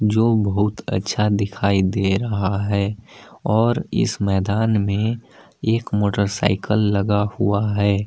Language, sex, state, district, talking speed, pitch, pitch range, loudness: Hindi, male, Jharkhand, Palamu, 120 wpm, 105 Hz, 100-110 Hz, -20 LUFS